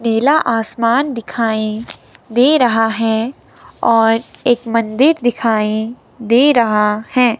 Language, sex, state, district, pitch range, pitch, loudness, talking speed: Hindi, male, Himachal Pradesh, Shimla, 225-245 Hz, 230 Hz, -15 LUFS, 105 wpm